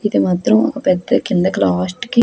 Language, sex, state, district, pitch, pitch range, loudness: Telugu, female, Andhra Pradesh, Krishna, 210 Hz, 180-240 Hz, -16 LUFS